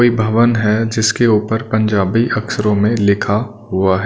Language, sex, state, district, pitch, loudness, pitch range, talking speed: Hindi, male, Punjab, Kapurthala, 110 Hz, -15 LUFS, 105-115 Hz, 160 wpm